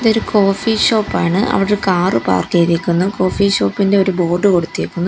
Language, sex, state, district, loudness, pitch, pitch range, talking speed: Malayalam, female, Kerala, Kollam, -15 LUFS, 195 Hz, 175-205 Hz, 155 wpm